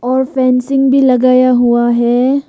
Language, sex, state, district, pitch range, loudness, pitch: Hindi, female, Arunachal Pradesh, Papum Pare, 245-265 Hz, -11 LUFS, 255 Hz